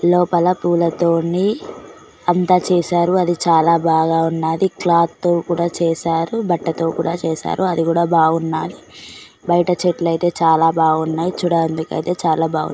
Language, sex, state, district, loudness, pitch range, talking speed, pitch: Telugu, female, Telangana, Karimnagar, -17 LUFS, 165-175 Hz, 125 wpm, 170 Hz